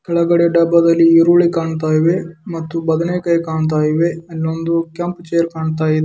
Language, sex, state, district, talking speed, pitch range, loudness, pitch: Kannada, male, Karnataka, Dharwad, 120 wpm, 160-170 Hz, -15 LUFS, 165 Hz